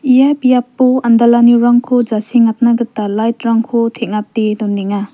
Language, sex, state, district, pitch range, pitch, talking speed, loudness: Garo, female, Meghalaya, West Garo Hills, 215-245 Hz, 235 Hz, 95 wpm, -12 LUFS